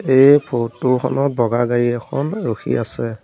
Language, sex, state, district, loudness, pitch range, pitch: Assamese, male, Assam, Sonitpur, -17 LUFS, 120-135 Hz, 120 Hz